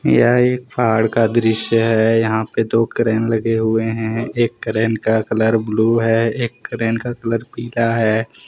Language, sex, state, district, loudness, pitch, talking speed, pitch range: Hindi, male, Jharkhand, Deoghar, -17 LUFS, 115 Hz, 170 wpm, 110-115 Hz